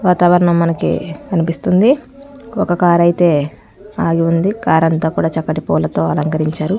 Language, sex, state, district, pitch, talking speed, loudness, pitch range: Telugu, female, Andhra Pradesh, Krishna, 170 Hz, 105 wpm, -15 LUFS, 160-195 Hz